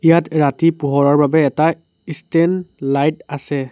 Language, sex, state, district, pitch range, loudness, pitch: Assamese, male, Assam, Sonitpur, 140-165 Hz, -16 LUFS, 155 Hz